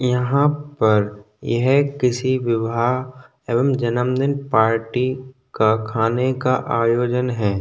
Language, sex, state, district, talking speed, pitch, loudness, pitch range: Hindi, male, Maharashtra, Chandrapur, 100 wpm, 125 Hz, -20 LUFS, 115-130 Hz